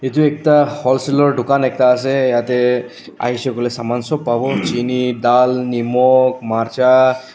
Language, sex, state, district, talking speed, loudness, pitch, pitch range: Nagamese, male, Nagaland, Dimapur, 130 wpm, -15 LUFS, 125 Hz, 120-130 Hz